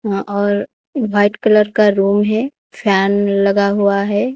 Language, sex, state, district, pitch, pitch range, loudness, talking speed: Hindi, female, Odisha, Khordha, 205 Hz, 200-215 Hz, -15 LUFS, 140 wpm